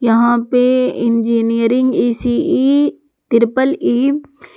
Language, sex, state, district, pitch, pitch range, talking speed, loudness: Hindi, female, Jharkhand, Palamu, 250 Hz, 235-285 Hz, 120 wpm, -14 LUFS